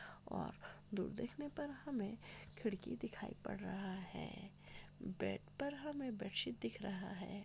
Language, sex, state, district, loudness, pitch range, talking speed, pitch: Hindi, female, Rajasthan, Churu, -46 LUFS, 195-280 Hz, 135 wpm, 205 Hz